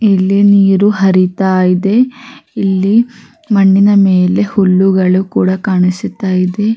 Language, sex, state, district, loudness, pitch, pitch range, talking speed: Kannada, female, Karnataka, Raichur, -11 LUFS, 195 Hz, 185-205 Hz, 100 wpm